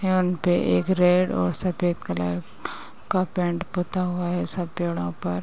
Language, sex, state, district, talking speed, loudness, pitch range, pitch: Hindi, female, Uttar Pradesh, Ghazipur, 165 wpm, -23 LUFS, 155-180 Hz, 175 Hz